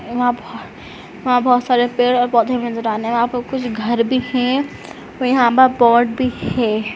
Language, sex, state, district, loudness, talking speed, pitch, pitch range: Hindi, female, Uttar Pradesh, Budaun, -16 LUFS, 180 wpm, 245 Hz, 235-250 Hz